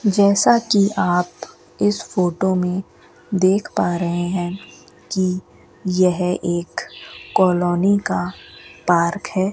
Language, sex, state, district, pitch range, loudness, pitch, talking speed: Hindi, female, Rajasthan, Bikaner, 175-200 Hz, -19 LUFS, 185 Hz, 105 wpm